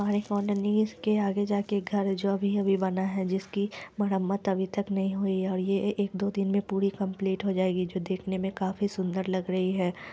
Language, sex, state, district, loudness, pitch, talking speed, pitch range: Hindi, female, Bihar, Lakhisarai, -29 LUFS, 195 Hz, 205 wpm, 190-200 Hz